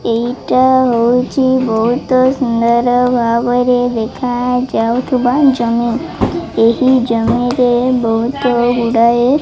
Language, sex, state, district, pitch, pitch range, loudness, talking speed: Odia, female, Odisha, Malkangiri, 245 Hz, 235-255 Hz, -13 LUFS, 95 wpm